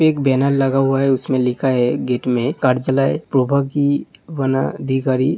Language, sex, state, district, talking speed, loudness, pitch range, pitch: Hindi, male, Uttar Pradesh, Hamirpur, 155 wpm, -18 LUFS, 130-140 Hz, 135 Hz